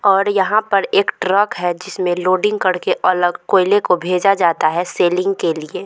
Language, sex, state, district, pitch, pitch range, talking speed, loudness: Hindi, female, Bihar, Vaishali, 185 Hz, 175-195 Hz, 185 wpm, -16 LUFS